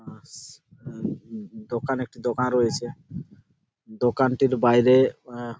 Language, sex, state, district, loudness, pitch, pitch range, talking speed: Bengali, male, West Bengal, Purulia, -23 LUFS, 125 Hz, 120-135 Hz, 75 wpm